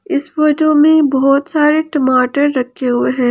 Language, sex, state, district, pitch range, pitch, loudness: Hindi, female, Jharkhand, Palamu, 260-305 Hz, 285 Hz, -13 LUFS